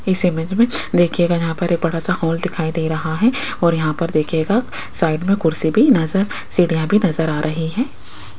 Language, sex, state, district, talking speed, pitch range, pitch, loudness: Hindi, female, Rajasthan, Jaipur, 205 wpm, 160-190 Hz, 170 Hz, -18 LUFS